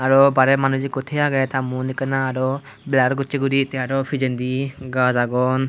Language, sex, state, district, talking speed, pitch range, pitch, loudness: Chakma, male, Tripura, Unakoti, 190 wpm, 130-135 Hz, 135 Hz, -20 LUFS